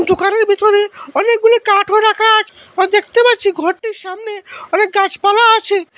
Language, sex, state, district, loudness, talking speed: Bengali, male, Assam, Hailakandi, -12 LUFS, 140 wpm